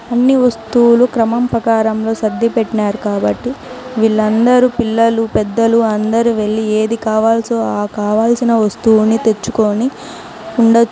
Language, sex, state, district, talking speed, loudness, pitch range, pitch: Telugu, female, Telangana, Hyderabad, 105 wpm, -14 LUFS, 215-235 Hz, 225 Hz